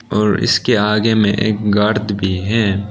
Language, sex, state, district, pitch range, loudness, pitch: Hindi, male, Arunachal Pradesh, Lower Dibang Valley, 105-110 Hz, -15 LUFS, 105 Hz